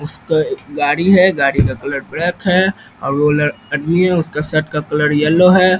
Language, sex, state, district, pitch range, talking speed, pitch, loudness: Hindi, male, Bihar, East Champaran, 145-180 Hz, 215 wpm, 155 Hz, -15 LUFS